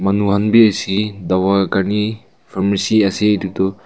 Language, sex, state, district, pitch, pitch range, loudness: Nagamese, male, Nagaland, Kohima, 100 Hz, 95-105 Hz, -16 LUFS